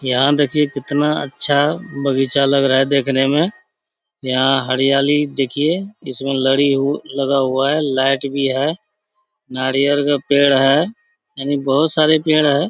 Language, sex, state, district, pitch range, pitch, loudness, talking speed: Hindi, male, Bihar, Supaul, 135-150 Hz, 140 Hz, -16 LUFS, 140 wpm